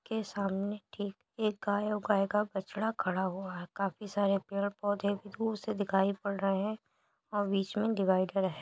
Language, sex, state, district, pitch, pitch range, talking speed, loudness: Hindi, male, Uttar Pradesh, Jalaun, 200 Hz, 195-210 Hz, 200 wpm, -33 LUFS